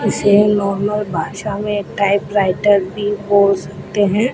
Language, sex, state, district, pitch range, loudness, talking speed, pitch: Hindi, female, Rajasthan, Bikaner, 200-205 Hz, -16 LUFS, 125 wpm, 205 Hz